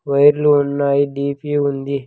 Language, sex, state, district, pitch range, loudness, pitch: Telugu, male, Andhra Pradesh, Sri Satya Sai, 140-145 Hz, -16 LUFS, 140 Hz